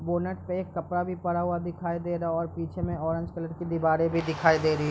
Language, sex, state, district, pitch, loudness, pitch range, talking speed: Hindi, male, Bihar, East Champaran, 170 Hz, -28 LUFS, 165-175 Hz, 280 wpm